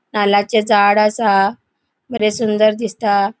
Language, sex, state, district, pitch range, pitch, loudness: Konkani, female, Goa, North and South Goa, 205-220 Hz, 210 Hz, -15 LUFS